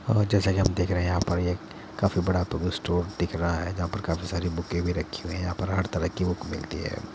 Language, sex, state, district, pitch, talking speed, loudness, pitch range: Hindi, male, Uttar Pradesh, Muzaffarnagar, 90 Hz, 285 wpm, -28 LUFS, 85-95 Hz